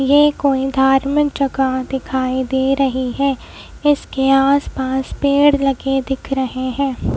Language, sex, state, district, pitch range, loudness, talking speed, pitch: Hindi, female, Madhya Pradesh, Bhopal, 265-280 Hz, -17 LUFS, 125 wpm, 270 Hz